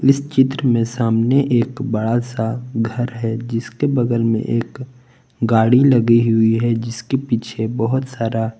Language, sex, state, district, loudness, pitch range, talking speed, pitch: Hindi, male, Jharkhand, Palamu, -18 LUFS, 115-130 Hz, 145 wpm, 115 Hz